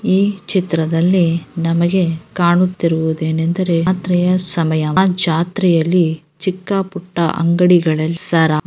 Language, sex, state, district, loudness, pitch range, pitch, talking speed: Kannada, female, Karnataka, Gulbarga, -16 LUFS, 165-185 Hz, 170 Hz, 90 wpm